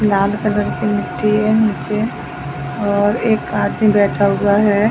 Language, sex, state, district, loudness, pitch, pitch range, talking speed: Hindi, female, Chhattisgarh, Raigarh, -16 LUFS, 205 Hz, 200-215 Hz, 160 wpm